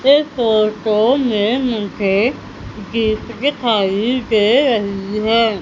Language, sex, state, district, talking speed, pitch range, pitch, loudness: Hindi, female, Madhya Pradesh, Umaria, 95 wpm, 210-245 Hz, 220 Hz, -16 LUFS